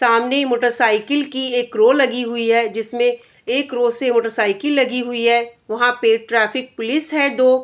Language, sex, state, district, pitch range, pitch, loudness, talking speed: Hindi, female, Bihar, Araria, 230-260 Hz, 245 Hz, -17 LUFS, 175 wpm